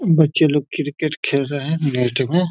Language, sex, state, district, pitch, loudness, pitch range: Hindi, male, Bihar, Saran, 150 Hz, -19 LUFS, 140-160 Hz